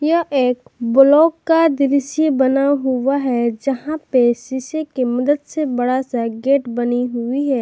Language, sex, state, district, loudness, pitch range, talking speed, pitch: Hindi, female, Jharkhand, Garhwa, -17 LUFS, 250-290 Hz, 155 wpm, 270 Hz